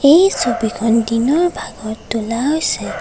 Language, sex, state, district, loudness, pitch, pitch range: Assamese, female, Assam, Kamrup Metropolitan, -16 LUFS, 230 Hz, 225-300 Hz